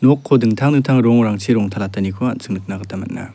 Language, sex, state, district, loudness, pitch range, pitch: Garo, male, Meghalaya, South Garo Hills, -17 LUFS, 100-130 Hz, 115 Hz